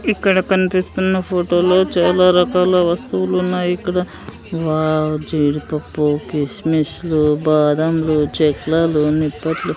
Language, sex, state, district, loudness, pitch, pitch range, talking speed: Telugu, female, Andhra Pradesh, Sri Satya Sai, -17 LUFS, 165 Hz, 155-180 Hz, 105 wpm